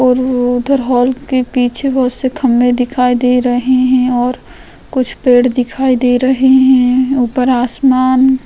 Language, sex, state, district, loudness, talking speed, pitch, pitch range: Hindi, female, Maharashtra, Aurangabad, -12 LUFS, 155 wpm, 255 Hz, 245-260 Hz